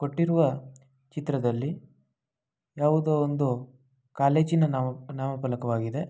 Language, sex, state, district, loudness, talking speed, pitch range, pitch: Kannada, male, Karnataka, Mysore, -27 LUFS, 80 wpm, 130-150 Hz, 135 Hz